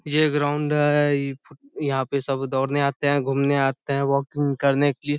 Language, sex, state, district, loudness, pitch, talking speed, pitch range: Hindi, male, Bihar, Saharsa, -22 LUFS, 140 Hz, 185 wpm, 140-145 Hz